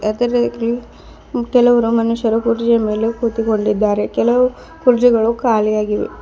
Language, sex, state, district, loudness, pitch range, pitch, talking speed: Kannada, female, Karnataka, Bidar, -16 LUFS, 220-240 Hz, 230 Hz, 75 wpm